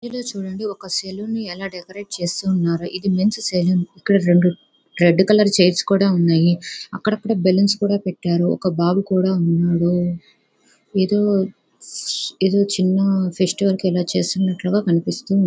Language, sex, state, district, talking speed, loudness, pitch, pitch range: Telugu, female, Andhra Pradesh, Visakhapatnam, 130 wpm, -19 LUFS, 190 Hz, 175-200 Hz